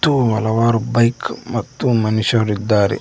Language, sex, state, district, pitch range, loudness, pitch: Kannada, male, Karnataka, Koppal, 110-120 Hz, -17 LUFS, 115 Hz